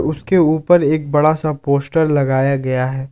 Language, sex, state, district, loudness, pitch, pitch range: Hindi, male, Jharkhand, Ranchi, -16 LUFS, 145 Hz, 140-155 Hz